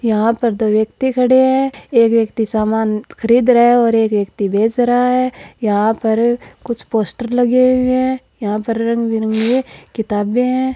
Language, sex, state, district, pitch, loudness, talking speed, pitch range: Marwari, female, Rajasthan, Churu, 230 Hz, -15 LUFS, 175 wpm, 220-250 Hz